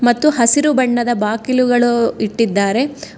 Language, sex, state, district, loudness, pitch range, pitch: Kannada, female, Karnataka, Bangalore, -15 LUFS, 230-260 Hz, 240 Hz